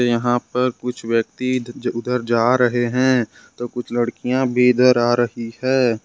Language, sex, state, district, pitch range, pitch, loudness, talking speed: Hindi, male, Jharkhand, Ranchi, 120-125 Hz, 125 Hz, -19 LUFS, 160 wpm